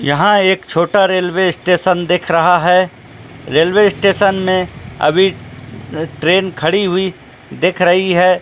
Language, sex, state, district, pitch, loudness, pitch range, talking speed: Hindi, male, Jharkhand, Jamtara, 180 Hz, -13 LUFS, 155-190 Hz, 135 wpm